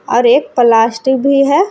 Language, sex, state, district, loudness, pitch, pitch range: Hindi, female, Jharkhand, Palamu, -11 LUFS, 270 Hz, 235-290 Hz